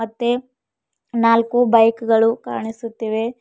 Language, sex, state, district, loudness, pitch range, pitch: Kannada, female, Karnataka, Bidar, -18 LUFS, 225-240 Hz, 230 Hz